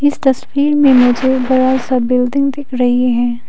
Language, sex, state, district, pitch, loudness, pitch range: Hindi, female, Arunachal Pradesh, Papum Pare, 260 Hz, -13 LUFS, 250-280 Hz